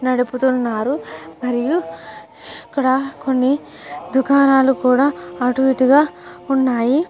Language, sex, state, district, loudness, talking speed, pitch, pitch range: Telugu, female, Andhra Pradesh, Guntur, -17 LUFS, 75 wpm, 260 Hz, 245-270 Hz